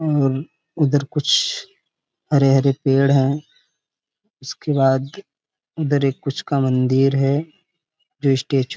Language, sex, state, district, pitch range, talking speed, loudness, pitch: Hindi, male, Jharkhand, Sahebganj, 135-155 Hz, 115 wpm, -19 LUFS, 140 Hz